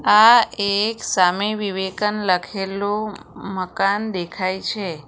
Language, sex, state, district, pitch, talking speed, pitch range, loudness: Gujarati, female, Gujarat, Valsad, 200 Hz, 95 wpm, 185-210 Hz, -20 LUFS